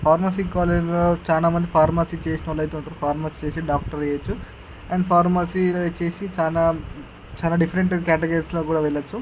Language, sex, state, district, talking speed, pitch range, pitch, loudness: Telugu, male, Andhra Pradesh, Chittoor, 130 wpm, 155-175 Hz, 165 Hz, -22 LUFS